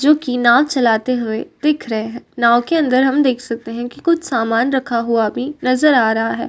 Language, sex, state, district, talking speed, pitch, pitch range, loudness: Hindi, female, Uttar Pradesh, Varanasi, 230 wpm, 250 Hz, 230-275 Hz, -16 LUFS